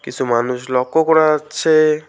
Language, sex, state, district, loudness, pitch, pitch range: Bengali, male, West Bengal, Alipurduar, -16 LUFS, 150 Hz, 125-155 Hz